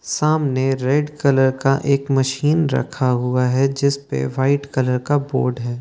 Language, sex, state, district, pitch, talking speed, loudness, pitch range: Hindi, male, Bihar, Katihar, 135 Hz, 165 wpm, -19 LUFS, 130-140 Hz